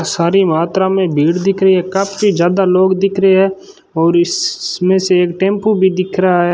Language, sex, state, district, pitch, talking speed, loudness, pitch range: Hindi, male, Rajasthan, Bikaner, 190 Hz, 200 wpm, -13 LUFS, 175-195 Hz